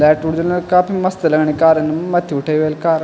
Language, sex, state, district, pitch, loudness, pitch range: Garhwali, male, Uttarakhand, Tehri Garhwal, 160 Hz, -15 LUFS, 155-175 Hz